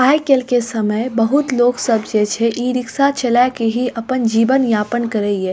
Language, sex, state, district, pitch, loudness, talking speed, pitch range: Maithili, female, Bihar, Saharsa, 240 Hz, -16 LUFS, 185 wpm, 225-255 Hz